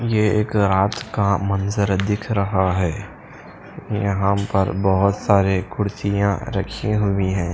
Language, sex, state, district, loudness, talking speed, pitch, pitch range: Hindi, male, Punjab, Pathankot, -20 LUFS, 125 wpm, 100 Hz, 95-105 Hz